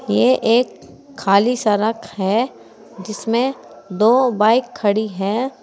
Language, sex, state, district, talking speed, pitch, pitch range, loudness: Hindi, female, Uttar Pradesh, Saharanpur, 105 wpm, 225 Hz, 205-245 Hz, -18 LUFS